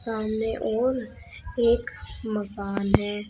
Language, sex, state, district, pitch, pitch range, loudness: Hindi, female, Uttar Pradesh, Saharanpur, 220 Hz, 205-235 Hz, -27 LUFS